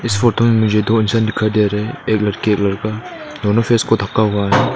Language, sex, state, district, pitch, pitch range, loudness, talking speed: Hindi, male, Arunachal Pradesh, Papum Pare, 110 Hz, 105-115 Hz, -16 LUFS, 250 wpm